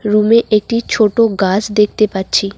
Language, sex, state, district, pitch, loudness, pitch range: Bengali, female, West Bengal, Cooch Behar, 210 Hz, -13 LUFS, 200-225 Hz